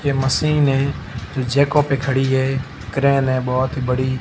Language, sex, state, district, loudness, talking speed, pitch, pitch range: Hindi, male, Rajasthan, Barmer, -19 LUFS, 185 wpm, 135 Hz, 130-140 Hz